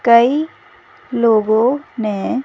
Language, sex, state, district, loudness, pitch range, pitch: Hindi, female, Himachal Pradesh, Shimla, -16 LUFS, 230-315 Hz, 250 Hz